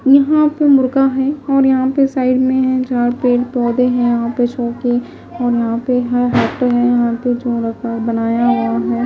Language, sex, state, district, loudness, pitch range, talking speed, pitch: Hindi, female, Himachal Pradesh, Shimla, -15 LUFS, 240-260 Hz, 180 wpm, 245 Hz